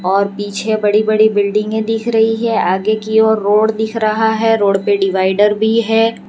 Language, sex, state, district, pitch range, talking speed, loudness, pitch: Hindi, female, Gujarat, Valsad, 205-225 Hz, 200 wpm, -14 LUFS, 215 Hz